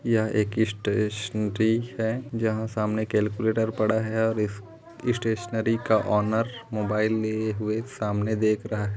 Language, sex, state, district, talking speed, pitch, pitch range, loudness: Hindi, male, Chhattisgarh, Kabirdham, 135 wpm, 110 Hz, 105-110 Hz, -26 LUFS